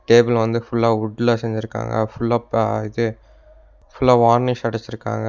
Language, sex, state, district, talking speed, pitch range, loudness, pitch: Tamil, male, Tamil Nadu, Nilgiris, 125 wpm, 110-120 Hz, -19 LUFS, 115 Hz